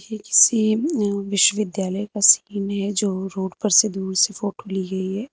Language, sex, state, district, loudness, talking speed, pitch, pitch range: Hindi, female, Uttar Pradesh, Lucknow, -19 LUFS, 190 wpm, 200 Hz, 190-210 Hz